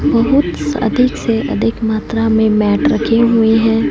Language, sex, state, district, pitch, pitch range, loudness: Hindi, female, Punjab, Fazilka, 225 Hz, 220-235 Hz, -14 LUFS